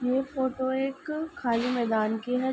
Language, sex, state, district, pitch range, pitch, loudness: Hindi, female, Uttar Pradesh, Ghazipur, 240-270 Hz, 260 Hz, -28 LUFS